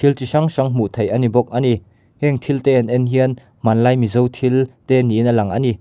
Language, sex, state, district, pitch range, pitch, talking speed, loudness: Mizo, male, Mizoram, Aizawl, 115-130 Hz, 125 Hz, 270 wpm, -17 LUFS